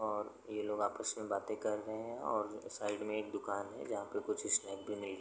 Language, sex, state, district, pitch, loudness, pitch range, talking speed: Hindi, male, Uttar Pradesh, Varanasi, 105 Hz, -39 LUFS, 105-110 Hz, 255 wpm